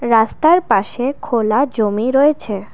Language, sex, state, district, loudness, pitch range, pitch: Bengali, female, Assam, Kamrup Metropolitan, -16 LUFS, 220-280 Hz, 240 Hz